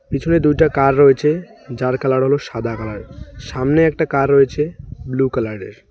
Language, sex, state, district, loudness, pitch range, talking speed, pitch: Bengali, male, West Bengal, Alipurduar, -17 LUFS, 125-150 Hz, 160 wpm, 135 Hz